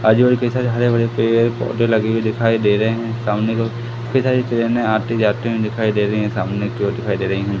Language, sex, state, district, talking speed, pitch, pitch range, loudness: Hindi, male, Madhya Pradesh, Katni, 235 wpm, 115 Hz, 105-115 Hz, -18 LUFS